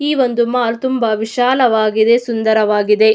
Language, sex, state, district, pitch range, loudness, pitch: Kannada, female, Karnataka, Mysore, 220-250 Hz, -14 LUFS, 230 Hz